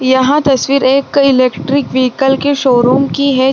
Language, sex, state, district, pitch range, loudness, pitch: Hindi, female, Bihar, Saran, 260-275 Hz, -11 LUFS, 270 Hz